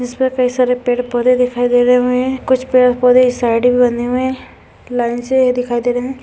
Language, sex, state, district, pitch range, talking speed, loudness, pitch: Hindi, female, Rajasthan, Churu, 245-255 Hz, 230 wpm, -14 LUFS, 250 Hz